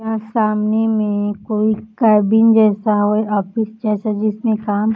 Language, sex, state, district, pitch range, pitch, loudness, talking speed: Hindi, female, Uttar Pradesh, Varanasi, 210-220 Hz, 215 Hz, -16 LUFS, 145 wpm